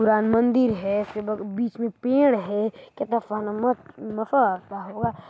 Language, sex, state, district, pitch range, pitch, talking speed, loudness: Hindi, male, Chhattisgarh, Balrampur, 205-235 Hz, 220 Hz, 80 wpm, -24 LUFS